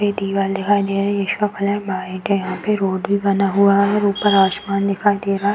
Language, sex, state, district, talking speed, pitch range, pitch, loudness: Hindi, female, Uttar Pradesh, Varanasi, 250 wpm, 195-205 Hz, 200 Hz, -18 LUFS